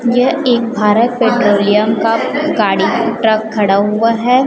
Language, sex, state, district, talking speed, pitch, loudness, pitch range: Hindi, female, Chhattisgarh, Raipur, 135 wpm, 225 Hz, -13 LUFS, 210-240 Hz